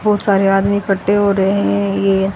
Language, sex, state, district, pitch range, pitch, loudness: Hindi, female, Haryana, Rohtak, 190-200 Hz, 195 Hz, -15 LUFS